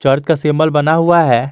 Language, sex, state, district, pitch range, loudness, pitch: Hindi, male, Jharkhand, Garhwa, 140-165 Hz, -13 LUFS, 150 Hz